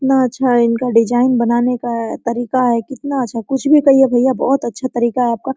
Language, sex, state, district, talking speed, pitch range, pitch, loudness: Hindi, female, Jharkhand, Sahebganj, 205 wpm, 235-265 Hz, 250 Hz, -15 LUFS